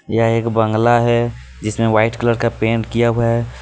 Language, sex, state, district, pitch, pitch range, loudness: Hindi, male, Jharkhand, Deoghar, 115 Hz, 110-120 Hz, -17 LUFS